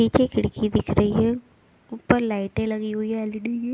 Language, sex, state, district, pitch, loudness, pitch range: Hindi, female, Bihar, West Champaran, 225 Hz, -23 LUFS, 215-235 Hz